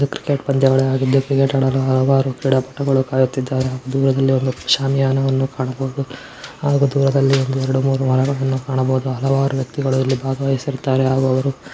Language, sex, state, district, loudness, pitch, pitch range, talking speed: Kannada, male, Karnataka, Bijapur, -18 LUFS, 135 Hz, 130-135 Hz, 140 wpm